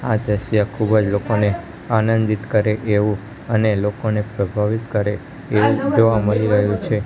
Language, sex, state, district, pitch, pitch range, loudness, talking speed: Gujarati, male, Gujarat, Gandhinagar, 105 Hz, 105-110 Hz, -19 LUFS, 145 wpm